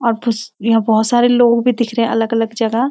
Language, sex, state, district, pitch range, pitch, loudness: Hindi, female, Uttarakhand, Uttarkashi, 225-240 Hz, 230 Hz, -15 LUFS